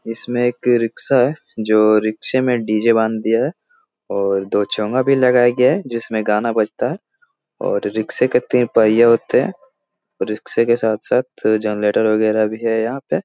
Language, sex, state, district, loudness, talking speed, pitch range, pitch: Hindi, male, Bihar, Jahanabad, -17 LUFS, 180 wpm, 110-125 Hz, 115 Hz